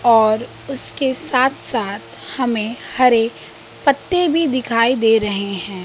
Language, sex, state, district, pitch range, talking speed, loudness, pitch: Hindi, female, Bihar, West Champaran, 225-270 Hz, 125 wpm, -18 LUFS, 250 Hz